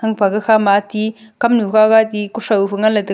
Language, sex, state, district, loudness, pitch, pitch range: Wancho, female, Arunachal Pradesh, Longding, -15 LUFS, 215 Hz, 205-220 Hz